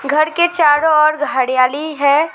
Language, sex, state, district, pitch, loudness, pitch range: Hindi, female, West Bengal, Alipurduar, 300 Hz, -14 LUFS, 280-310 Hz